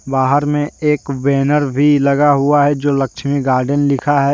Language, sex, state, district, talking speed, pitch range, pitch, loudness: Hindi, male, Jharkhand, Deoghar, 180 wpm, 140-145 Hz, 140 Hz, -14 LUFS